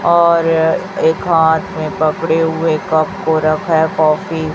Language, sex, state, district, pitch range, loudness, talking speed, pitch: Hindi, female, Chhattisgarh, Raipur, 155-165 Hz, -14 LUFS, 160 wpm, 160 Hz